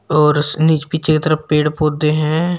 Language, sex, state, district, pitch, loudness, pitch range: Hindi, male, Uttar Pradesh, Shamli, 155 Hz, -15 LUFS, 150-160 Hz